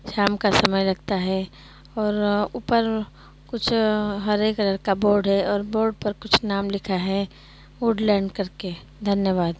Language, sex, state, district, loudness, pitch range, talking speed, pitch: Hindi, female, Uttar Pradesh, Jyotiba Phule Nagar, -23 LUFS, 195-215 Hz, 145 wpm, 205 Hz